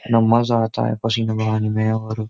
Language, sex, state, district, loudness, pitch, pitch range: Hindi, male, Uttar Pradesh, Jyotiba Phule Nagar, -19 LUFS, 110 Hz, 110-115 Hz